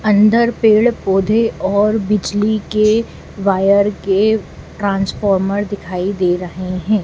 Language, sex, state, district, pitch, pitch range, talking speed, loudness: Hindi, female, Madhya Pradesh, Dhar, 205 Hz, 195-215 Hz, 110 wpm, -15 LUFS